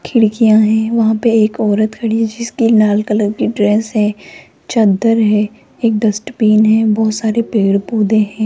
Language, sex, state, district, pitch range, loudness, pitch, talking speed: Hindi, female, Rajasthan, Jaipur, 210-225 Hz, -13 LUFS, 220 Hz, 170 wpm